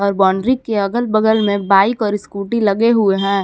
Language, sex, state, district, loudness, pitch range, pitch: Hindi, female, Jharkhand, Palamu, -15 LUFS, 200-220 Hz, 205 Hz